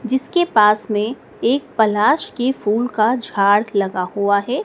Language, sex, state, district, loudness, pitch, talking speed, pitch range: Hindi, female, Madhya Pradesh, Dhar, -18 LUFS, 220 Hz, 155 wpm, 205-255 Hz